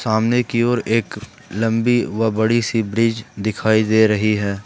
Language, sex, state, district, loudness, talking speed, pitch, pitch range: Hindi, male, Jharkhand, Ranchi, -18 LUFS, 165 wpm, 110 Hz, 110-115 Hz